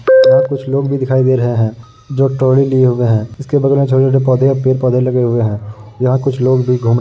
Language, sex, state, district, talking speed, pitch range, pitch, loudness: Hindi, male, Uttar Pradesh, Muzaffarnagar, 240 wpm, 120-135 Hz, 130 Hz, -13 LUFS